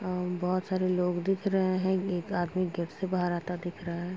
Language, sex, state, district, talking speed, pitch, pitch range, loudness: Hindi, female, Uttar Pradesh, Gorakhpur, 230 wpm, 180 Hz, 175-185 Hz, -30 LUFS